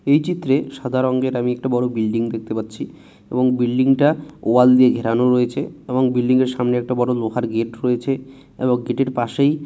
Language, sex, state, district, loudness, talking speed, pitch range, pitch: Bengali, male, West Bengal, Malda, -19 LUFS, 185 wpm, 120-130 Hz, 125 Hz